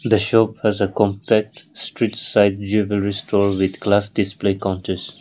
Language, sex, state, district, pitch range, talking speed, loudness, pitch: English, male, Nagaland, Kohima, 100-105 Hz, 150 wpm, -19 LUFS, 100 Hz